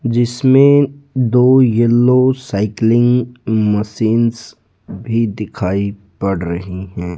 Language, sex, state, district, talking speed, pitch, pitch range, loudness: Hindi, male, Rajasthan, Jaipur, 85 wpm, 115 Hz, 100-125 Hz, -14 LUFS